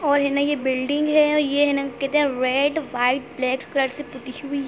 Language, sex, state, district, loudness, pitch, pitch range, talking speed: Hindi, female, Bihar, Muzaffarpur, -21 LUFS, 280 Hz, 260-290 Hz, 220 wpm